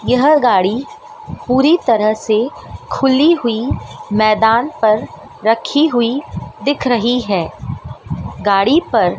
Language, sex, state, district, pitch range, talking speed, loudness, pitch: Hindi, female, Madhya Pradesh, Dhar, 215-285 Hz, 105 wpm, -15 LUFS, 240 Hz